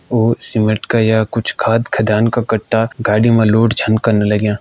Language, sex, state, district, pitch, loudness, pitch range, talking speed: Hindi, male, Uttarakhand, Uttarkashi, 110 Hz, -14 LUFS, 110-115 Hz, 155 wpm